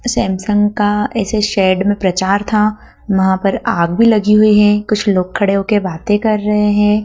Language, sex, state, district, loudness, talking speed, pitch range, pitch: Hindi, female, Madhya Pradesh, Dhar, -14 LUFS, 185 wpm, 195-215 Hz, 210 Hz